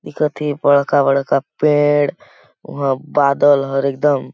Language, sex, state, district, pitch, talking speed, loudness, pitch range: Awadhi, male, Chhattisgarh, Balrampur, 145 Hz, 95 wpm, -16 LUFS, 140-150 Hz